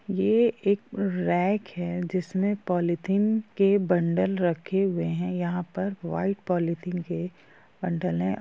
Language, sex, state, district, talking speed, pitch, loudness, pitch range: Hindi, female, Bihar, Gopalganj, 135 wpm, 180 Hz, -26 LUFS, 175-195 Hz